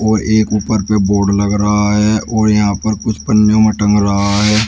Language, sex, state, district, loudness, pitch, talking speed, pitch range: Hindi, male, Uttar Pradesh, Shamli, -13 LUFS, 105 Hz, 220 wpm, 105-110 Hz